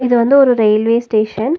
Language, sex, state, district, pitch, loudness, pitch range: Tamil, female, Tamil Nadu, Nilgiris, 235 Hz, -12 LUFS, 215-250 Hz